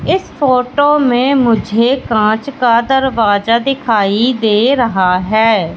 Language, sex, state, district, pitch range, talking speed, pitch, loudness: Hindi, female, Madhya Pradesh, Katni, 220-265 Hz, 115 wpm, 235 Hz, -12 LUFS